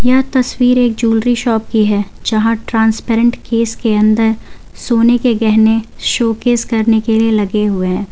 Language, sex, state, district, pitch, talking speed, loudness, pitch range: Hindi, female, Jharkhand, Garhwa, 225 Hz, 155 wpm, -13 LUFS, 220-240 Hz